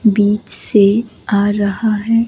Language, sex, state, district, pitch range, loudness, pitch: Hindi, female, Himachal Pradesh, Shimla, 205-225 Hz, -15 LUFS, 210 Hz